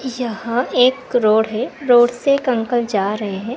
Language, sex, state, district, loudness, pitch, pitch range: Hindi, female, Karnataka, Bangalore, -17 LUFS, 240 Hz, 220-255 Hz